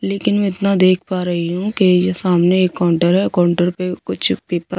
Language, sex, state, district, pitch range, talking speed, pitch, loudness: Hindi, female, Bihar, Kaimur, 175-190 Hz, 225 wpm, 180 Hz, -16 LUFS